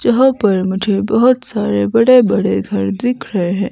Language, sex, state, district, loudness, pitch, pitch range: Hindi, female, Himachal Pradesh, Shimla, -14 LUFS, 210 Hz, 185-245 Hz